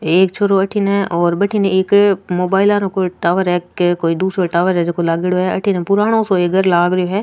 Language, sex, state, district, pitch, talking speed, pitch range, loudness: Rajasthani, female, Rajasthan, Nagaur, 185 Hz, 225 wpm, 175-200 Hz, -15 LUFS